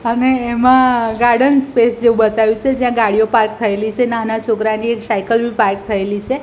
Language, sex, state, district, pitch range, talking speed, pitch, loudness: Gujarati, female, Gujarat, Gandhinagar, 220-245 Hz, 185 wpm, 230 Hz, -14 LUFS